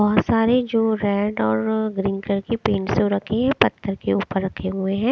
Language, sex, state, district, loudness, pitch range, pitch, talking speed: Hindi, female, Chandigarh, Chandigarh, -21 LUFS, 195-220 Hz, 205 Hz, 210 wpm